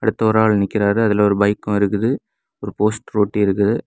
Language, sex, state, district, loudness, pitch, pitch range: Tamil, male, Tamil Nadu, Kanyakumari, -18 LUFS, 105 Hz, 100-110 Hz